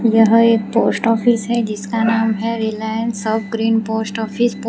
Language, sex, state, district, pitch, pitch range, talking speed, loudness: Hindi, female, Gujarat, Valsad, 225 Hz, 220-230 Hz, 180 wpm, -17 LUFS